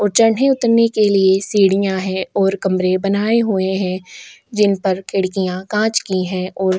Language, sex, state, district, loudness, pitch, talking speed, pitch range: Hindi, female, Goa, North and South Goa, -16 LUFS, 195 Hz, 170 wpm, 190-210 Hz